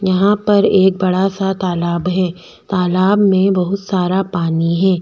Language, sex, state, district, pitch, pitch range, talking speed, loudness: Hindi, female, Chhattisgarh, Bastar, 185 Hz, 180-195 Hz, 155 wpm, -15 LUFS